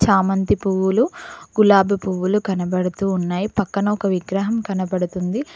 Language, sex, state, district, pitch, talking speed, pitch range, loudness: Telugu, female, Telangana, Mahabubabad, 195 Hz, 110 wpm, 185-205 Hz, -20 LUFS